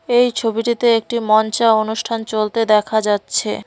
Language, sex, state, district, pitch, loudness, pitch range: Bengali, female, West Bengal, Cooch Behar, 225 Hz, -17 LUFS, 215-230 Hz